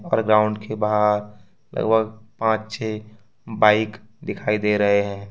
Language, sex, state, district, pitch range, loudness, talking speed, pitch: Hindi, male, Jharkhand, Ranchi, 105-110 Hz, -21 LUFS, 135 wpm, 105 Hz